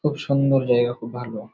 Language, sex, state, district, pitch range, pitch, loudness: Bengali, male, West Bengal, Malda, 120-140 Hz, 125 Hz, -22 LUFS